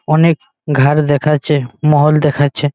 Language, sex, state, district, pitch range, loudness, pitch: Bengali, male, West Bengal, Malda, 145-150 Hz, -13 LUFS, 150 Hz